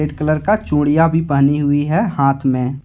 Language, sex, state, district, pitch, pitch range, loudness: Hindi, male, Jharkhand, Deoghar, 150 Hz, 140-155 Hz, -16 LUFS